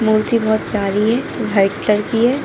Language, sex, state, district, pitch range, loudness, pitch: Hindi, female, Jharkhand, Jamtara, 210-230 Hz, -17 LUFS, 215 Hz